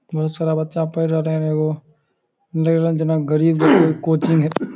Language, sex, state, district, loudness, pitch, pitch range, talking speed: Maithili, male, Bihar, Samastipur, -18 LUFS, 160 Hz, 155-160 Hz, 165 wpm